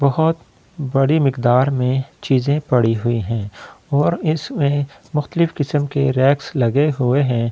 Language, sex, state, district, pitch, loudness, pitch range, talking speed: Hindi, male, Delhi, New Delhi, 140 Hz, -18 LUFS, 125-150 Hz, 145 wpm